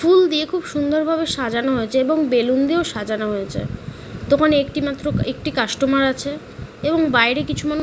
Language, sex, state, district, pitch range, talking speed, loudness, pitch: Bengali, female, West Bengal, Kolkata, 250-310 Hz, 175 wpm, -19 LUFS, 285 Hz